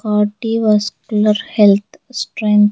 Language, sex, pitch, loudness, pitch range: English, female, 210 Hz, -15 LUFS, 210-225 Hz